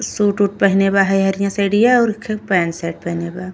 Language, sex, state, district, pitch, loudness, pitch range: Bhojpuri, female, Uttar Pradesh, Ghazipur, 195 Hz, -17 LUFS, 185-205 Hz